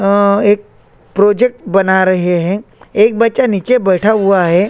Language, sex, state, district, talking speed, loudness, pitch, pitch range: Hindi, male, Chhattisgarh, Korba, 155 wpm, -12 LUFS, 200 Hz, 190-220 Hz